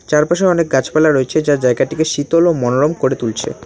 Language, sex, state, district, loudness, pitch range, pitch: Bengali, male, West Bengal, Alipurduar, -15 LUFS, 130-160 Hz, 150 Hz